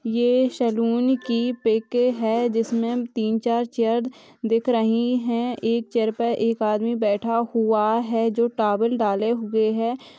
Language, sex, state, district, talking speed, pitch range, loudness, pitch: Hindi, female, Uttar Pradesh, Jyotiba Phule Nagar, 145 wpm, 225-240 Hz, -22 LUFS, 230 Hz